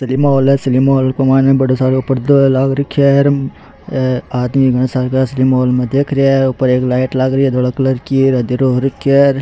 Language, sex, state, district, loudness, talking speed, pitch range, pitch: Rajasthani, male, Rajasthan, Churu, -13 LUFS, 240 wpm, 130-135 Hz, 130 Hz